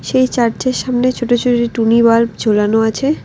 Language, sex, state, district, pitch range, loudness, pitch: Bengali, female, West Bengal, Alipurduar, 230-255 Hz, -14 LUFS, 240 Hz